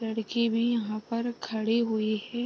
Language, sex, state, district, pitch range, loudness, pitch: Hindi, female, Bihar, East Champaran, 220-235 Hz, -29 LUFS, 225 Hz